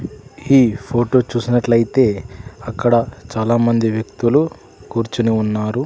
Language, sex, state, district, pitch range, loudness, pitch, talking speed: Telugu, male, Andhra Pradesh, Sri Satya Sai, 110-125 Hz, -17 LUFS, 120 Hz, 80 wpm